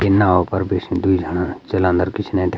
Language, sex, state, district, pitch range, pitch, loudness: Garhwali, male, Uttarakhand, Uttarkashi, 90-95 Hz, 95 Hz, -18 LUFS